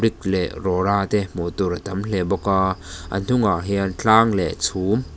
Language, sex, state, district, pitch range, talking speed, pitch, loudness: Mizo, male, Mizoram, Aizawl, 90-100 Hz, 185 wpm, 95 Hz, -21 LUFS